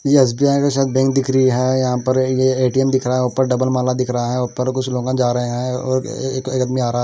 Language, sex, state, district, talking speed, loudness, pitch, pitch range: Hindi, male, Bihar, West Champaran, 325 wpm, -18 LUFS, 130 Hz, 125-130 Hz